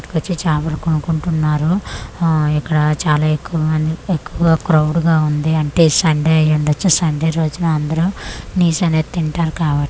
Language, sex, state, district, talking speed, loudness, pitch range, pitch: Telugu, female, Andhra Pradesh, Manyam, 140 wpm, -16 LUFS, 155-165 Hz, 160 Hz